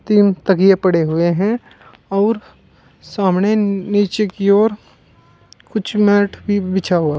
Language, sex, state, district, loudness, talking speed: Hindi, male, Uttar Pradesh, Shamli, -16 LUFS, 125 wpm